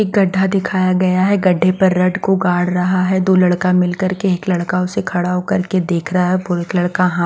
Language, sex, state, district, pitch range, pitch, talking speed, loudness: Hindi, female, Bihar, West Champaran, 180-190 Hz, 185 Hz, 255 wpm, -16 LUFS